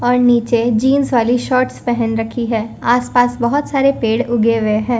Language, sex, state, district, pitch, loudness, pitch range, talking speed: Hindi, female, Punjab, Fazilka, 240 Hz, -15 LUFS, 230-250 Hz, 180 wpm